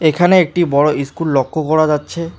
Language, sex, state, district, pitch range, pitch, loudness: Bengali, male, West Bengal, Alipurduar, 145-170 Hz, 155 Hz, -14 LUFS